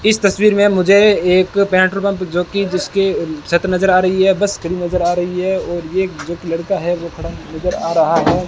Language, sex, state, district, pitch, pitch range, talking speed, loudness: Hindi, male, Rajasthan, Bikaner, 185 Hz, 175-195 Hz, 235 wpm, -15 LUFS